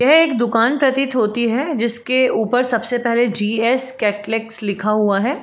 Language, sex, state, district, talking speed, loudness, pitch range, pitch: Hindi, female, Uttar Pradesh, Jalaun, 175 wpm, -17 LUFS, 220-255 Hz, 235 Hz